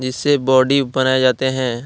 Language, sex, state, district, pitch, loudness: Hindi, male, Jharkhand, Deoghar, 130 Hz, -16 LUFS